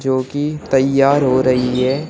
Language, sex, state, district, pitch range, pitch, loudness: Hindi, male, Uttar Pradesh, Shamli, 130-145 Hz, 135 Hz, -16 LUFS